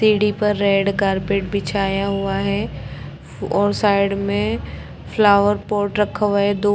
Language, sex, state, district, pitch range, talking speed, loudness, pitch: Hindi, female, Bihar, Sitamarhi, 195-205 Hz, 140 wpm, -19 LUFS, 200 Hz